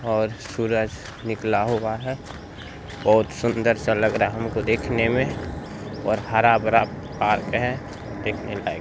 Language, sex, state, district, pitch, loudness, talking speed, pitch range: Hindi, male, Bihar, Muzaffarpur, 110 Hz, -23 LUFS, 135 wpm, 110-115 Hz